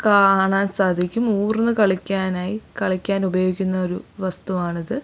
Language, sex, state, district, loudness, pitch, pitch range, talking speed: Malayalam, female, Kerala, Kozhikode, -21 LUFS, 190 Hz, 185-205 Hz, 105 wpm